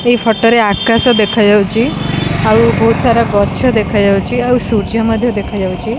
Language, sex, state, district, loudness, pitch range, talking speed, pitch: Odia, female, Odisha, Khordha, -12 LUFS, 205-235 Hz, 140 wpm, 225 Hz